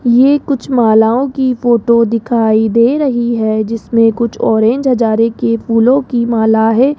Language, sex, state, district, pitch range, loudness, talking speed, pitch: Hindi, female, Rajasthan, Jaipur, 225-255 Hz, -12 LUFS, 155 wpm, 235 Hz